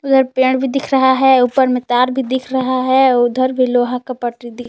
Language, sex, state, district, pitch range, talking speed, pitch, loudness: Hindi, female, Jharkhand, Palamu, 250-265 Hz, 245 wpm, 255 Hz, -15 LUFS